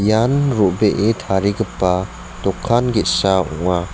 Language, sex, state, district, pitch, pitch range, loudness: Garo, male, Meghalaya, West Garo Hills, 100 Hz, 95-110 Hz, -17 LUFS